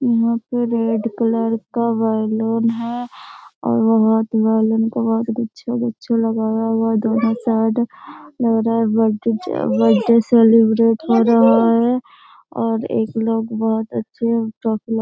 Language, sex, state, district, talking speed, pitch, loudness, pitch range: Hindi, male, Bihar, Jamui, 140 wpm, 225 Hz, -17 LUFS, 225-230 Hz